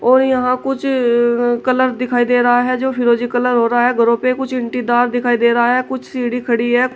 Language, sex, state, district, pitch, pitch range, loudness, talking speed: Hindi, female, Uttar Pradesh, Shamli, 245 Hz, 240-255 Hz, -15 LUFS, 225 wpm